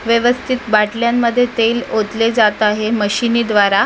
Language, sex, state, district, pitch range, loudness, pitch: Marathi, female, Maharashtra, Mumbai Suburban, 215-235 Hz, -15 LUFS, 230 Hz